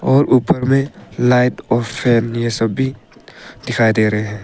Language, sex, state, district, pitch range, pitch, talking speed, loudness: Hindi, male, Arunachal Pradesh, Papum Pare, 115-130 Hz, 120 Hz, 175 wpm, -16 LUFS